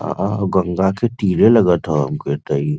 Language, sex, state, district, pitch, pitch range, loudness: Bhojpuri, male, Uttar Pradesh, Varanasi, 95 Hz, 75-100 Hz, -17 LUFS